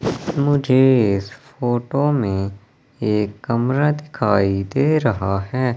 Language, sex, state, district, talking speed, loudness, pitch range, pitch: Hindi, male, Madhya Pradesh, Katni, 105 wpm, -19 LUFS, 105-140 Hz, 120 Hz